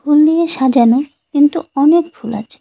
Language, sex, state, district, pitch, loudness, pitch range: Bengali, female, West Bengal, Cooch Behar, 285 Hz, -13 LUFS, 260-315 Hz